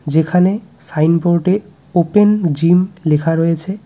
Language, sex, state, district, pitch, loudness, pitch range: Bengali, male, West Bengal, Cooch Behar, 175 Hz, -15 LUFS, 165-190 Hz